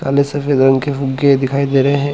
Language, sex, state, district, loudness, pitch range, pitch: Hindi, male, Chhattisgarh, Bilaspur, -14 LUFS, 135-140 Hz, 140 Hz